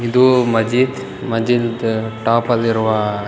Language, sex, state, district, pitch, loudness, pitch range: Kannada, male, Karnataka, Bellary, 115 Hz, -17 LUFS, 110-120 Hz